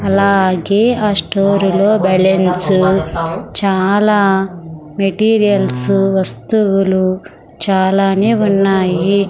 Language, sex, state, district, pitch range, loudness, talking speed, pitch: Telugu, female, Andhra Pradesh, Sri Satya Sai, 190-200 Hz, -13 LUFS, 65 wpm, 195 Hz